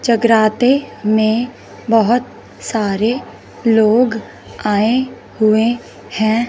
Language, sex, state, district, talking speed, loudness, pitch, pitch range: Hindi, female, Punjab, Fazilka, 75 wpm, -15 LUFS, 225 Hz, 215-245 Hz